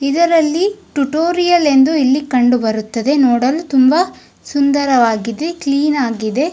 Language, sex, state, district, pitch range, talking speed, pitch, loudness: Kannada, female, Karnataka, Dharwad, 250-320 Hz, 100 wpm, 280 Hz, -14 LUFS